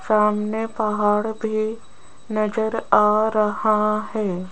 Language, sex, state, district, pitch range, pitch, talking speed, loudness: Hindi, female, Rajasthan, Jaipur, 210-220 Hz, 215 Hz, 95 wpm, -21 LUFS